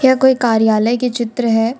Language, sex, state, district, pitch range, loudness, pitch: Hindi, female, Jharkhand, Ranchi, 225-250 Hz, -15 LUFS, 235 Hz